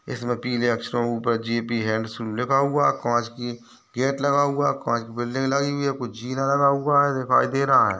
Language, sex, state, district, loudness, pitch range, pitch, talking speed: Hindi, male, Uttar Pradesh, Ghazipur, -23 LUFS, 115-140 Hz, 120 Hz, 200 wpm